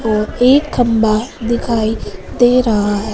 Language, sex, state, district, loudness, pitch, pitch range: Hindi, female, Punjab, Fazilka, -14 LUFS, 225 Hz, 215-245 Hz